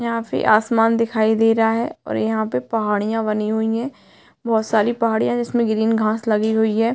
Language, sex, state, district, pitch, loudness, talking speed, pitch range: Hindi, female, Uttarakhand, Tehri Garhwal, 225 Hz, -19 LUFS, 200 wpm, 215-230 Hz